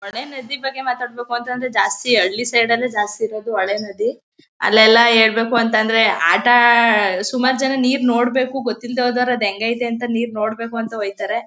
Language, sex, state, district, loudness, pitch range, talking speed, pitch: Kannada, female, Karnataka, Mysore, -17 LUFS, 220-250 Hz, 145 wpm, 235 Hz